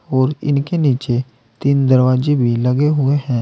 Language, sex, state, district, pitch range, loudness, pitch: Hindi, male, Uttar Pradesh, Saharanpur, 125-145 Hz, -16 LUFS, 130 Hz